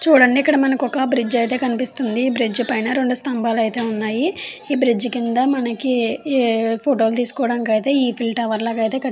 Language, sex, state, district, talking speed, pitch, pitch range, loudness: Telugu, female, Andhra Pradesh, Chittoor, 150 wpm, 245 Hz, 230-265 Hz, -19 LUFS